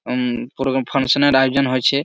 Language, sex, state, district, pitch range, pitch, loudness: Bengali, male, West Bengal, Malda, 125-140 Hz, 135 Hz, -18 LUFS